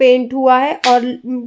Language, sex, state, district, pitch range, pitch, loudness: Hindi, female, Uttar Pradesh, Jyotiba Phule Nagar, 250-260 Hz, 255 Hz, -13 LUFS